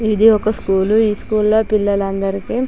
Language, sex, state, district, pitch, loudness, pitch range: Telugu, female, Andhra Pradesh, Chittoor, 210 Hz, -16 LUFS, 195-220 Hz